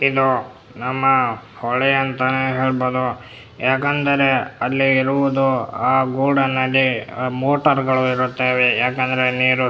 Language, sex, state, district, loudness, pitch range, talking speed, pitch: Kannada, male, Karnataka, Bellary, -18 LUFS, 125-135 Hz, 100 wpm, 130 Hz